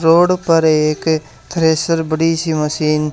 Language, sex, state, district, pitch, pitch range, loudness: Hindi, male, Haryana, Charkhi Dadri, 160 Hz, 155-165 Hz, -15 LUFS